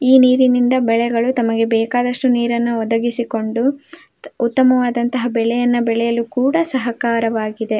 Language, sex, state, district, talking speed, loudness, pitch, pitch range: Kannada, female, Karnataka, Belgaum, 90 wpm, -17 LUFS, 240 Hz, 230-255 Hz